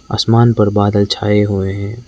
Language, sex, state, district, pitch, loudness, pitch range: Hindi, male, Arunachal Pradesh, Lower Dibang Valley, 105 Hz, -13 LUFS, 100-110 Hz